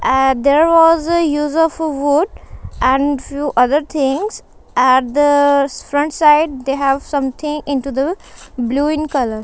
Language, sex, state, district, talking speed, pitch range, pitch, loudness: English, female, Punjab, Kapurthala, 150 wpm, 270-305 Hz, 285 Hz, -15 LUFS